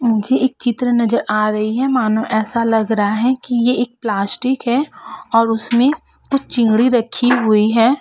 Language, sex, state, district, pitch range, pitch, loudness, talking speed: Hindi, female, Uttar Pradesh, Jalaun, 220-250 Hz, 235 Hz, -16 LUFS, 180 wpm